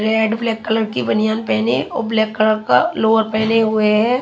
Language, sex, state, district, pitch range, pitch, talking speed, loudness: Hindi, female, Haryana, Charkhi Dadri, 210-220 Hz, 220 Hz, 215 wpm, -17 LUFS